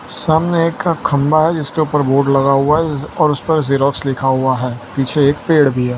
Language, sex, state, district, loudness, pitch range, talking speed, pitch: Hindi, male, Gujarat, Valsad, -15 LUFS, 135-155 Hz, 220 wpm, 145 Hz